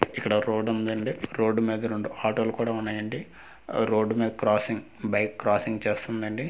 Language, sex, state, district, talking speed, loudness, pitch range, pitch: Telugu, male, Andhra Pradesh, Manyam, 150 wpm, -27 LUFS, 105-115 Hz, 110 Hz